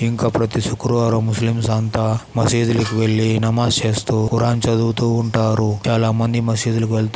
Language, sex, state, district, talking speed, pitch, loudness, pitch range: Telugu, male, Andhra Pradesh, Chittoor, 125 wpm, 115 Hz, -18 LUFS, 110-115 Hz